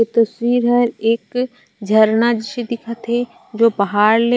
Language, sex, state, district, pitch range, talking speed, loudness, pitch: Chhattisgarhi, female, Chhattisgarh, Raigarh, 220-240 Hz, 150 wpm, -17 LUFS, 230 Hz